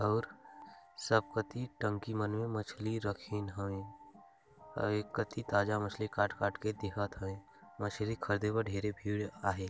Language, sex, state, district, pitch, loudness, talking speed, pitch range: Hindi, male, Chhattisgarh, Balrampur, 105 Hz, -37 LUFS, 150 wpm, 100-110 Hz